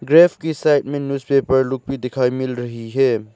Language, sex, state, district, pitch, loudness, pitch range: Hindi, male, Arunachal Pradesh, Lower Dibang Valley, 135 Hz, -18 LUFS, 125-145 Hz